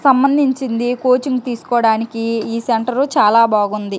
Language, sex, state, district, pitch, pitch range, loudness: Telugu, male, Andhra Pradesh, Guntur, 235 Hz, 225-260 Hz, -16 LUFS